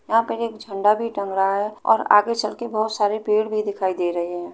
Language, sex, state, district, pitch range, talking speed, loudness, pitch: Hindi, female, Uttar Pradesh, Jalaun, 195-220 Hz, 250 wpm, -21 LUFS, 210 Hz